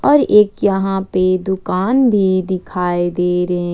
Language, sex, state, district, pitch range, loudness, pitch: Hindi, female, Jharkhand, Ranchi, 180-205 Hz, -15 LUFS, 185 Hz